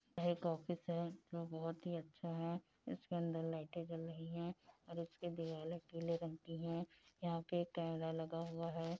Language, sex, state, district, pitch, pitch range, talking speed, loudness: Hindi, female, Uttar Pradesh, Budaun, 170 Hz, 165-170 Hz, 195 wpm, -45 LUFS